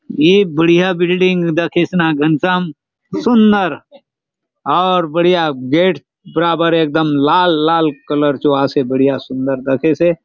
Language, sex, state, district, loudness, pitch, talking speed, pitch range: Halbi, male, Chhattisgarh, Bastar, -14 LUFS, 165 Hz, 135 wpm, 145-180 Hz